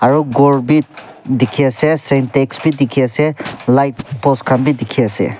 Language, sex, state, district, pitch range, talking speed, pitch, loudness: Nagamese, male, Nagaland, Kohima, 130-150 Hz, 135 wpm, 140 Hz, -14 LUFS